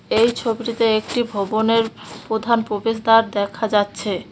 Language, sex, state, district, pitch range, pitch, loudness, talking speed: Bengali, female, West Bengal, Cooch Behar, 210-230 Hz, 225 Hz, -19 LUFS, 110 wpm